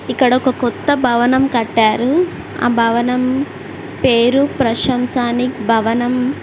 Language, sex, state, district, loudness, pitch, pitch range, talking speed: Telugu, female, Telangana, Mahabubabad, -15 LUFS, 250 Hz, 235-260 Hz, 95 wpm